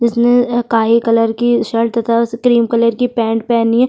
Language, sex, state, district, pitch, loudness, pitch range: Hindi, female, Chhattisgarh, Sukma, 230 Hz, -14 LUFS, 230-240 Hz